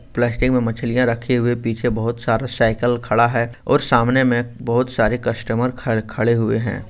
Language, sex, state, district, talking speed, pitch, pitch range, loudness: Hindi, male, Jharkhand, Sahebganj, 180 wpm, 120 Hz, 115-125 Hz, -19 LUFS